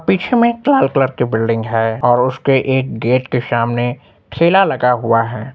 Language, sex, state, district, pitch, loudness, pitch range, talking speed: Hindi, male, Uttar Pradesh, Lucknow, 125 Hz, -15 LUFS, 115-135 Hz, 195 wpm